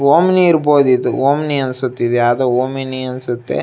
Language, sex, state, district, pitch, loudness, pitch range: Kannada, male, Karnataka, Shimoga, 130 Hz, -15 LUFS, 125-145 Hz